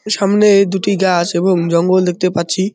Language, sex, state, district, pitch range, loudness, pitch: Bengali, male, West Bengal, Jalpaiguri, 175-200 Hz, -14 LUFS, 185 Hz